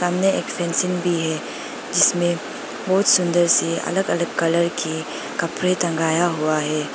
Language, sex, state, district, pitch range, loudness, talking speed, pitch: Hindi, female, Arunachal Pradesh, Lower Dibang Valley, 160-180 Hz, -20 LUFS, 145 wpm, 170 Hz